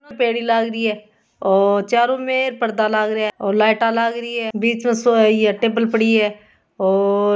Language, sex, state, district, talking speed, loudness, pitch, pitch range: Hindi, female, Rajasthan, Churu, 185 wpm, -18 LUFS, 225 Hz, 210-235 Hz